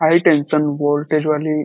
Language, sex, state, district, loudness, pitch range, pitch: Hindi, male, Uttar Pradesh, Deoria, -17 LUFS, 145-155 Hz, 150 Hz